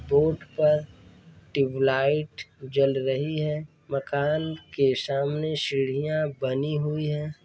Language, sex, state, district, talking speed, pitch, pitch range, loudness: Hindi, male, Bihar, Darbhanga, 105 wpm, 145 Hz, 135-150 Hz, -26 LUFS